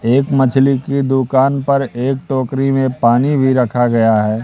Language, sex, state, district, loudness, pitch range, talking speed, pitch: Hindi, male, Madhya Pradesh, Katni, -14 LUFS, 125-135 Hz, 175 wpm, 130 Hz